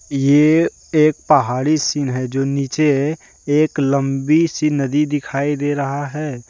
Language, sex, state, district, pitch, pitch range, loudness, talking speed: Hindi, male, Jharkhand, Deoghar, 145 Hz, 135-150 Hz, -17 LUFS, 150 wpm